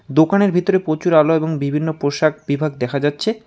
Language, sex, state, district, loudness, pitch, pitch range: Bengali, male, West Bengal, Alipurduar, -17 LUFS, 155 Hz, 145-175 Hz